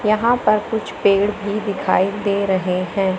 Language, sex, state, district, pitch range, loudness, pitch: Hindi, male, Madhya Pradesh, Katni, 195-215 Hz, -19 LUFS, 200 Hz